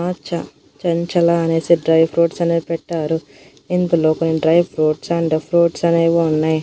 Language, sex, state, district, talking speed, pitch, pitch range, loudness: Telugu, female, Andhra Pradesh, Annamaya, 145 wpm, 165 Hz, 160-170 Hz, -17 LUFS